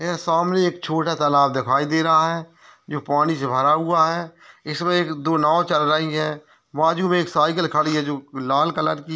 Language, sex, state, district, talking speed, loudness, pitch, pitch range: Hindi, male, Bihar, Kishanganj, 210 wpm, -20 LUFS, 160 Hz, 150-165 Hz